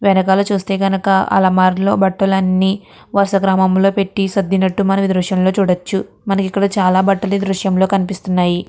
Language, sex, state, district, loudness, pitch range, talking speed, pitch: Telugu, female, Andhra Pradesh, Guntur, -15 LUFS, 190-195 Hz, 140 wpm, 195 Hz